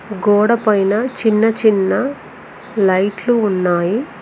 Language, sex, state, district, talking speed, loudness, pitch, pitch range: Telugu, female, Telangana, Mahabubabad, 70 wpm, -15 LUFS, 210 Hz, 195-230 Hz